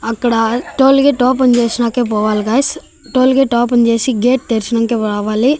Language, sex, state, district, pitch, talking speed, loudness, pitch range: Telugu, male, Andhra Pradesh, Annamaya, 240 Hz, 130 wpm, -13 LUFS, 230-260 Hz